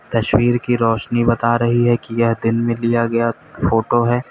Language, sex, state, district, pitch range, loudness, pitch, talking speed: Hindi, male, Uttar Pradesh, Lalitpur, 115-120 Hz, -17 LUFS, 115 Hz, 195 wpm